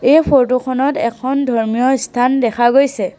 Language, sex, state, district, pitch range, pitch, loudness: Assamese, female, Assam, Sonitpur, 240-270 Hz, 255 Hz, -14 LUFS